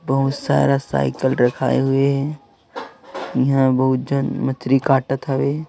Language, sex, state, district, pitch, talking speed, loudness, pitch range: Hindi, female, Chhattisgarh, Raipur, 135 Hz, 115 wpm, -19 LUFS, 125-135 Hz